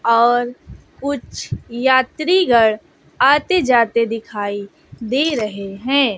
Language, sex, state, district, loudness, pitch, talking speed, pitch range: Hindi, female, Bihar, West Champaran, -17 LUFS, 240 Hz, 85 wpm, 225-275 Hz